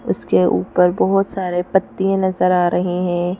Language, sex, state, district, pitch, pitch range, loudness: Hindi, female, Madhya Pradesh, Bhopal, 180 Hz, 175-190 Hz, -17 LUFS